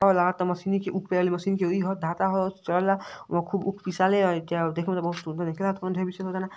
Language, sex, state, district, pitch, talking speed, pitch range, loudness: Bhojpuri, male, Uttar Pradesh, Ghazipur, 185 Hz, 255 wpm, 175-190 Hz, -27 LUFS